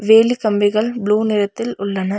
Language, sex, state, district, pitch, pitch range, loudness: Tamil, female, Tamil Nadu, Nilgiris, 215 Hz, 205-225 Hz, -17 LUFS